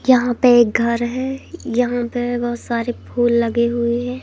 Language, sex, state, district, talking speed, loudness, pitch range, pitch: Hindi, female, Madhya Pradesh, Katni, 185 wpm, -18 LUFS, 235-245 Hz, 240 Hz